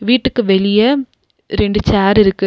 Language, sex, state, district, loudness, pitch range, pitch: Tamil, female, Tamil Nadu, Nilgiris, -14 LUFS, 195-245 Hz, 210 Hz